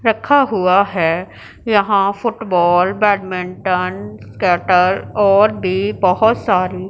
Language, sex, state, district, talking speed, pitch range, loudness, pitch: Hindi, female, Punjab, Pathankot, 105 wpm, 180-205 Hz, -15 LUFS, 190 Hz